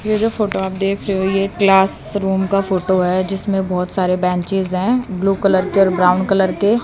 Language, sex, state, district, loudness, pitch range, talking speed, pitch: Hindi, female, Haryana, Charkhi Dadri, -17 LUFS, 185-195 Hz, 220 wpm, 195 Hz